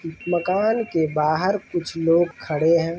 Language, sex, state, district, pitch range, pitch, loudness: Hindi, male, Rajasthan, Churu, 160-180 Hz, 170 Hz, -21 LUFS